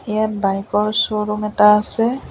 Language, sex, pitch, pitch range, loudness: Assamese, female, 210 Hz, 210-215 Hz, -17 LUFS